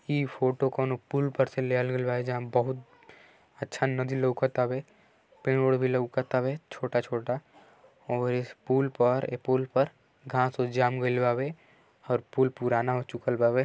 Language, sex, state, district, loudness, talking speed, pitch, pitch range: Bhojpuri, male, Uttar Pradesh, Gorakhpur, -29 LUFS, 165 wpm, 130 Hz, 125-130 Hz